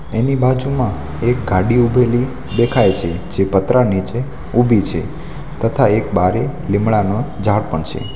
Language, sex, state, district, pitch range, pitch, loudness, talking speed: Gujarati, male, Gujarat, Valsad, 100-125 Hz, 120 Hz, -16 LUFS, 140 wpm